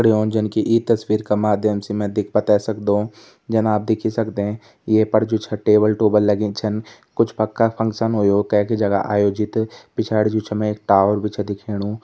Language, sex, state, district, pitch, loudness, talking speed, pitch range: Garhwali, male, Uttarakhand, Tehri Garhwal, 105 Hz, -19 LUFS, 205 wpm, 105-110 Hz